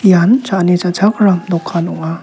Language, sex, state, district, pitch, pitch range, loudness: Garo, male, Meghalaya, South Garo Hills, 180 Hz, 175-200 Hz, -13 LUFS